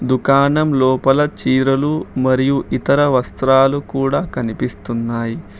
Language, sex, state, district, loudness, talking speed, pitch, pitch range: Telugu, male, Telangana, Hyderabad, -16 LUFS, 85 wpm, 135 Hz, 130-140 Hz